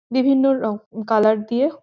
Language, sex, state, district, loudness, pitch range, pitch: Bengali, female, West Bengal, Jhargram, -19 LUFS, 215-270 Hz, 235 Hz